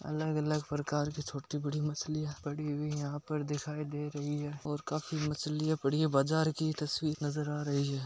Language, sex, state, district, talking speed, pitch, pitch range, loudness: Hindi, male, Rajasthan, Nagaur, 200 wpm, 150 Hz, 145-155 Hz, -35 LUFS